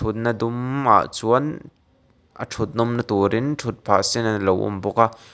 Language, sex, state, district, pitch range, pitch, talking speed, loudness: Mizo, male, Mizoram, Aizawl, 105-120 Hz, 115 Hz, 180 wpm, -21 LUFS